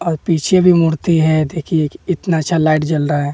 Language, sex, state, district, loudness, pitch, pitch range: Hindi, male, Bihar, West Champaran, -15 LUFS, 160 Hz, 155-170 Hz